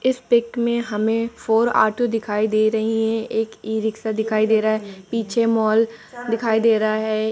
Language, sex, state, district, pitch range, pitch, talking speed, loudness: Hindi, female, Uttar Pradesh, Jalaun, 215-230 Hz, 220 Hz, 180 wpm, -20 LUFS